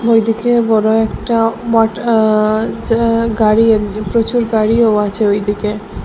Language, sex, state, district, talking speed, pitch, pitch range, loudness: Bengali, female, Assam, Hailakandi, 90 wpm, 225 Hz, 215-230 Hz, -14 LUFS